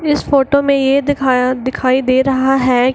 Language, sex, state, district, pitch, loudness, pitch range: Hindi, female, Bihar, Gaya, 265 Hz, -14 LUFS, 255-280 Hz